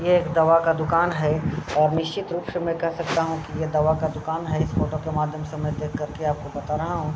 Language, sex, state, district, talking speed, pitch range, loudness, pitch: Hindi, male, Uttar Pradesh, Jalaun, 260 wpm, 150-165 Hz, -24 LUFS, 160 Hz